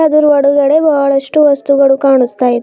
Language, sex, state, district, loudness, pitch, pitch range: Kannada, female, Karnataka, Bidar, -10 LUFS, 280 Hz, 275-295 Hz